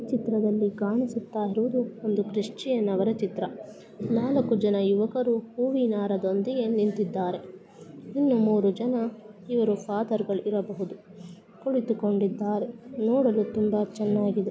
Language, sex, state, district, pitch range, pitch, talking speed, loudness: Kannada, female, Karnataka, Belgaum, 205-235 Hz, 215 Hz, 105 wpm, -27 LUFS